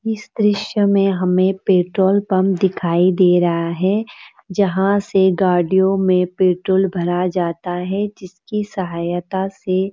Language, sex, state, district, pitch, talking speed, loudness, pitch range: Hindi, female, Uttarakhand, Uttarkashi, 190 Hz, 135 wpm, -17 LUFS, 180-195 Hz